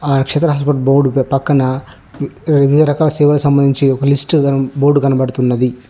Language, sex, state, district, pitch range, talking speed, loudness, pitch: Telugu, male, Telangana, Hyderabad, 135-145 Hz, 90 wpm, -13 LUFS, 140 Hz